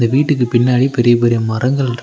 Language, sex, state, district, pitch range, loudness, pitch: Tamil, male, Tamil Nadu, Nilgiris, 120-130 Hz, -14 LUFS, 120 Hz